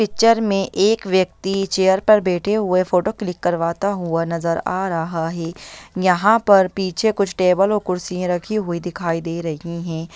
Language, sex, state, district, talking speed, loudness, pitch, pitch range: Hindi, female, Bihar, Jahanabad, 170 wpm, -19 LUFS, 185 Hz, 170-200 Hz